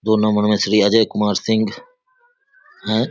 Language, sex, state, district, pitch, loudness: Hindi, male, Bihar, Saharsa, 110 Hz, -17 LUFS